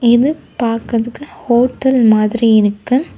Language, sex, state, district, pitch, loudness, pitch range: Tamil, female, Tamil Nadu, Kanyakumari, 235 Hz, -14 LUFS, 225-255 Hz